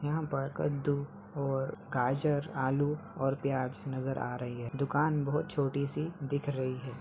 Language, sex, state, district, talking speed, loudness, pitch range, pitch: Hindi, male, Bihar, Saran, 165 wpm, -33 LUFS, 130-145 Hz, 140 Hz